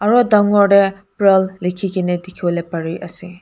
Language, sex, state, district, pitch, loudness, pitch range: Nagamese, female, Nagaland, Kohima, 190 Hz, -16 LUFS, 180-200 Hz